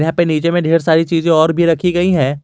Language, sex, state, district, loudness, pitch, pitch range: Hindi, male, Jharkhand, Garhwa, -14 LUFS, 165 Hz, 160-170 Hz